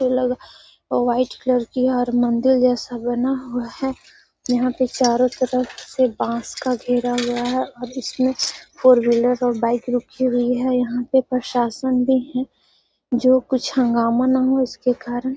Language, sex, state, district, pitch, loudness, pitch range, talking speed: Hindi, female, Bihar, Gaya, 250 Hz, -20 LUFS, 245-255 Hz, 170 wpm